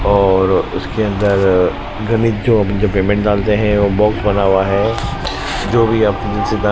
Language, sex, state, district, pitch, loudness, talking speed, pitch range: Hindi, male, Maharashtra, Mumbai Suburban, 105 Hz, -15 LUFS, 145 wpm, 100-105 Hz